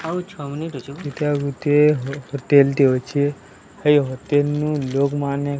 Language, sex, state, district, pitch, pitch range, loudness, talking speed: Odia, male, Odisha, Sambalpur, 145 Hz, 140-150 Hz, -20 LUFS, 120 wpm